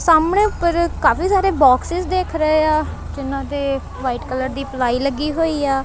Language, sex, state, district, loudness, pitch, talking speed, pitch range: Punjabi, female, Punjab, Kapurthala, -18 LUFS, 305 Hz, 175 wpm, 270-340 Hz